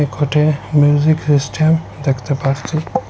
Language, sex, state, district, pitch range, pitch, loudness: Bengali, male, Assam, Hailakandi, 140-155 Hz, 145 Hz, -16 LUFS